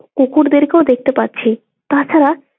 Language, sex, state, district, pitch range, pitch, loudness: Bengali, female, West Bengal, Jalpaiguri, 255-295 Hz, 280 Hz, -13 LUFS